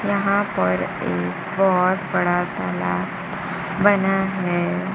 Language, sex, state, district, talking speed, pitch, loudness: Hindi, female, Bihar, Kaimur, 95 wpm, 185 Hz, -21 LUFS